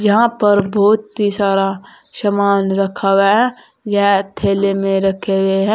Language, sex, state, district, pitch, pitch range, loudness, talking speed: Hindi, female, Uttar Pradesh, Saharanpur, 200 Hz, 195-210 Hz, -15 LUFS, 155 wpm